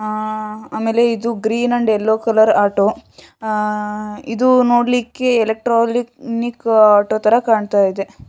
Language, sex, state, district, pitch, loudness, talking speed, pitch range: Kannada, female, Karnataka, Shimoga, 220 Hz, -16 LUFS, 95 wpm, 215-235 Hz